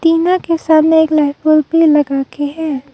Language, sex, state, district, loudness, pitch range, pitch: Hindi, female, Arunachal Pradesh, Papum Pare, -13 LUFS, 290-325 Hz, 310 Hz